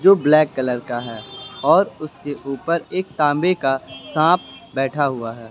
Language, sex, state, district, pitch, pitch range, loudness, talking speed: Hindi, male, Uttar Pradesh, Lucknow, 145 Hz, 130-155 Hz, -20 LUFS, 150 wpm